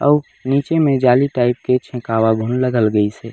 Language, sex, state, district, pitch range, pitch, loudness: Chhattisgarhi, male, Chhattisgarh, Raigarh, 115-135 Hz, 125 Hz, -17 LUFS